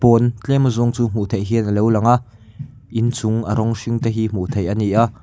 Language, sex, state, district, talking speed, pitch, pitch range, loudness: Mizo, male, Mizoram, Aizawl, 250 wpm, 115 Hz, 110-120 Hz, -18 LUFS